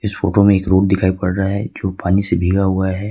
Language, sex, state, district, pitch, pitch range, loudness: Hindi, male, Jharkhand, Ranchi, 95 Hz, 95-100 Hz, -16 LUFS